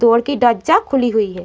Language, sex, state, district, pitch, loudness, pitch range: Hindi, female, Uttar Pradesh, Muzaffarnagar, 235 Hz, -15 LUFS, 220-245 Hz